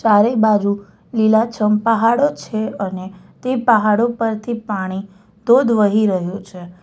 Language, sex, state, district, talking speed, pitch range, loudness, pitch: Gujarati, female, Gujarat, Valsad, 125 wpm, 200-230 Hz, -17 LUFS, 215 Hz